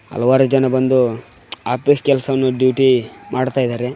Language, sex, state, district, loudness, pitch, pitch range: Kannada, male, Karnataka, Koppal, -16 LUFS, 130 Hz, 125-135 Hz